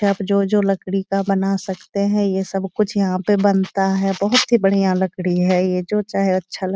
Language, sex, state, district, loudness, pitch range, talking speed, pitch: Hindi, female, Bihar, Jahanabad, -19 LUFS, 190-200 Hz, 230 wpm, 195 Hz